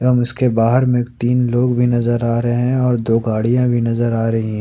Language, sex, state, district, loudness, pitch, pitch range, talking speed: Hindi, male, Jharkhand, Ranchi, -16 LUFS, 120 Hz, 115-125 Hz, 245 wpm